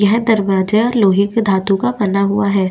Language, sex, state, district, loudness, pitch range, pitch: Hindi, female, Chhattisgarh, Bastar, -14 LUFS, 195-220 Hz, 200 Hz